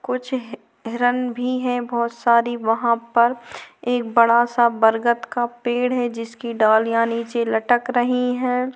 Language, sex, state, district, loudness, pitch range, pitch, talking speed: Hindi, female, Chhattisgarh, Korba, -20 LUFS, 235-250 Hz, 240 Hz, 150 wpm